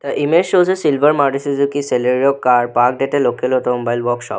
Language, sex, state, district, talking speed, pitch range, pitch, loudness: English, male, Assam, Sonitpur, 190 wpm, 125-145 Hz, 135 Hz, -15 LUFS